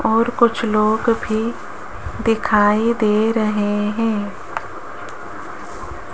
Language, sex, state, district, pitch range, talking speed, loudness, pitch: Hindi, female, Rajasthan, Jaipur, 210-230 Hz, 80 wpm, -18 LUFS, 220 Hz